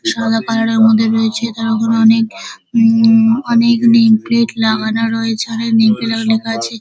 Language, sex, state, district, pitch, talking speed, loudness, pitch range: Bengali, female, West Bengal, Dakshin Dinajpur, 225 Hz, 165 wpm, -13 LUFS, 225-230 Hz